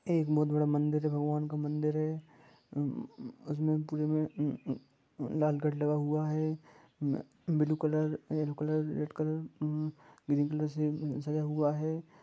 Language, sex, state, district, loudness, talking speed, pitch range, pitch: Hindi, male, Jharkhand, Sahebganj, -33 LUFS, 135 wpm, 150-155 Hz, 150 Hz